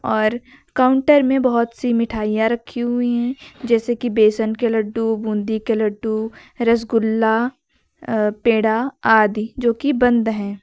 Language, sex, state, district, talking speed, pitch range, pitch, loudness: Hindi, female, Uttar Pradesh, Lucknow, 140 wpm, 220-245 Hz, 230 Hz, -18 LUFS